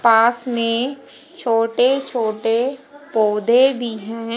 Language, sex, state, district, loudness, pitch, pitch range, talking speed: Hindi, female, Haryana, Jhajjar, -18 LUFS, 235 Hz, 225-265 Hz, 95 wpm